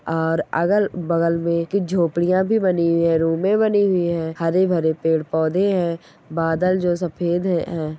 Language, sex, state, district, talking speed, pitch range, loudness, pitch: Hindi, female, Goa, North and South Goa, 155 wpm, 165-185 Hz, -20 LUFS, 170 Hz